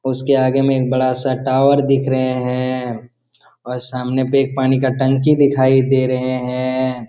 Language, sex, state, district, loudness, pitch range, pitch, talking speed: Hindi, male, Jharkhand, Jamtara, -16 LUFS, 125-135 Hz, 130 Hz, 180 wpm